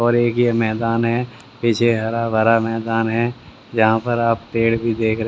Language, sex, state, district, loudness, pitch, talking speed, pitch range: Hindi, male, Haryana, Rohtak, -18 LUFS, 115 Hz, 195 wpm, 115-120 Hz